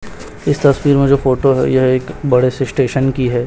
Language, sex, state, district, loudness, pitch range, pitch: Hindi, male, Chhattisgarh, Raipur, -14 LUFS, 130-140 Hz, 135 Hz